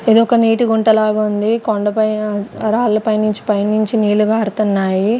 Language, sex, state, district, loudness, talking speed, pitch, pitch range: Telugu, female, Andhra Pradesh, Sri Satya Sai, -15 LUFS, 150 wpm, 215 Hz, 210-225 Hz